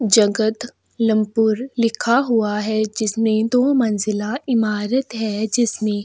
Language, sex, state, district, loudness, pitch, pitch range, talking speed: Hindi, female, Chhattisgarh, Sukma, -19 LUFS, 220 Hz, 215-235 Hz, 110 wpm